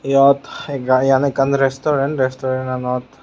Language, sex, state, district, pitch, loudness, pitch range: Chakma, male, Tripura, Unakoti, 135 Hz, -17 LUFS, 130-140 Hz